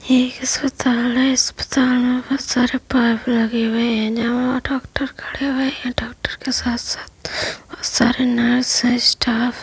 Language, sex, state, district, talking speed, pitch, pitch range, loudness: Hindi, female, Uttar Pradesh, Budaun, 175 wpm, 250 Hz, 240-260 Hz, -19 LUFS